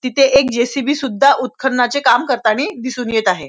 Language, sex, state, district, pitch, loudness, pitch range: Marathi, female, Maharashtra, Nagpur, 255 Hz, -15 LUFS, 235-270 Hz